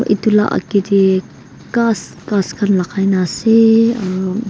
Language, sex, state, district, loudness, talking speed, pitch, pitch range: Nagamese, female, Nagaland, Kohima, -15 LUFS, 145 wpm, 205 Hz, 190-225 Hz